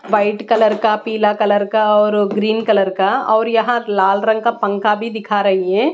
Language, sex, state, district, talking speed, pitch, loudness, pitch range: Hindi, female, Odisha, Malkangiri, 200 wpm, 215 Hz, -15 LUFS, 205-220 Hz